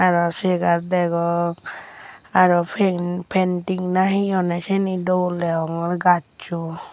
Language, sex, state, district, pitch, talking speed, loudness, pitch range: Chakma, female, Tripura, Unakoti, 180 Hz, 105 wpm, -21 LUFS, 170-185 Hz